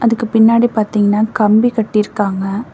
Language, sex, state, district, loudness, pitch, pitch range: Tamil, female, Tamil Nadu, Namakkal, -14 LUFS, 215 Hz, 210-230 Hz